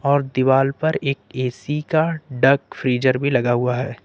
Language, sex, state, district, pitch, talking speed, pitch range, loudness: Hindi, male, Jharkhand, Ranchi, 135 Hz, 180 wpm, 125-140 Hz, -20 LUFS